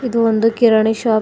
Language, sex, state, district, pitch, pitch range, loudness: Kannada, female, Karnataka, Bidar, 225 Hz, 220-230 Hz, -14 LUFS